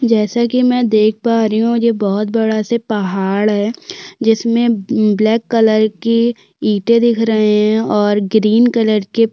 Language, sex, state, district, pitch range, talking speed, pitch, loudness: Hindi, female, Chhattisgarh, Korba, 215-235 Hz, 165 wpm, 225 Hz, -14 LUFS